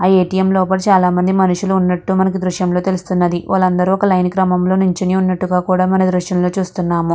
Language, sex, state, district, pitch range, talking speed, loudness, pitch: Telugu, female, Andhra Pradesh, Guntur, 180-190 Hz, 170 wpm, -15 LUFS, 185 Hz